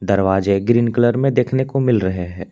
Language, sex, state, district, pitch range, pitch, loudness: Hindi, male, Jharkhand, Palamu, 95-125 Hz, 120 Hz, -17 LUFS